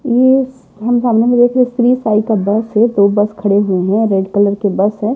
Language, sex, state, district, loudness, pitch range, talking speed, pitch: Hindi, male, Maharashtra, Washim, -13 LUFS, 200-240 Hz, 245 wpm, 220 Hz